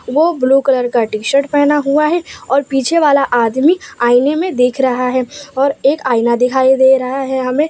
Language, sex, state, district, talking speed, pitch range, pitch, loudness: Hindi, female, Gujarat, Valsad, 205 wpm, 250-290 Hz, 270 Hz, -13 LUFS